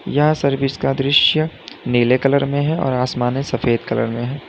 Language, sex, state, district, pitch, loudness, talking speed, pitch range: Hindi, male, Uttar Pradesh, Lalitpur, 135 Hz, -18 LUFS, 185 wpm, 125-140 Hz